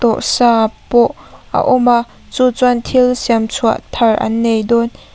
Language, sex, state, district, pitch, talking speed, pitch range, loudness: Mizo, female, Mizoram, Aizawl, 235 Hz, 185 wpm, 225-250 Hz, -14 LUFS